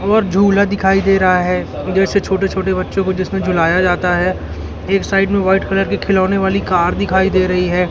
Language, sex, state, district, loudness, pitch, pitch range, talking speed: Hindi, male, Madhya Pradesh, Katni, -15 LUFS, 190 Hz, 180-195 Hz, 220 wpm